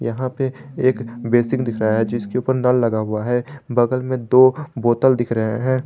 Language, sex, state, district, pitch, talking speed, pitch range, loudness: Hindi, male, Jharkhand, Garhwa, 125 Hz, 205 wpm, 115-130 Hz, -19 LUFS